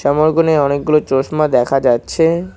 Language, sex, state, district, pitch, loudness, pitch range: Bengali, male, West Bengal, Cooch Behar, 150 Hz, -14 LUFS, 135-160 Hz